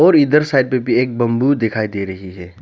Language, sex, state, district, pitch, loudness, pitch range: Hindi, male, Arunachal Pradesh, Lower Dibang Valley, 120 Hz, -16 LUFS, 100-130 Hz